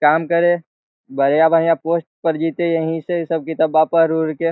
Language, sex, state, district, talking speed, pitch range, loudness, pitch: Magahi, male, Bihar, Lakhisarai, 170 wpm, 155-165 Hz, -17 LUFS, 165 Hz